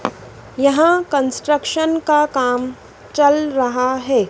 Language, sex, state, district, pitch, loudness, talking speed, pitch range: Hindi, female, Madhya Pradesh, Dhar, 285 Hz, -17 LUFS, 100 wpm, 255-300 Hz